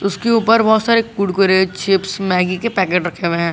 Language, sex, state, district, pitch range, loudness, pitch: Hindi, male, Jharkhand, Garhwa, 180-220 Hz, -15 LUFS, 195 Hz